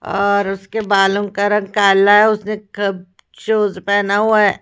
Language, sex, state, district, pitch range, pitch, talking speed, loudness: Hindi, female, Haryana, Rohtak, 195-210 Hz, 205 Hz, 170 wpm, -15 LUFS